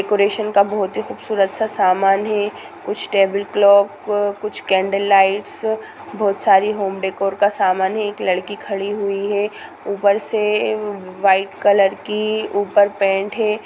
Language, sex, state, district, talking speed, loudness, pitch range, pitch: Hindi, female, Bihar, Gopalganj, 150 wpm, -18 LUFS, 195-210 Hz, 205 Hz